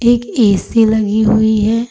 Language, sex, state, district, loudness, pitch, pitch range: Hindi, female, Uttar Pradesh, Lucknow, -13 LUFS, 220 Hz, 215-230 Hz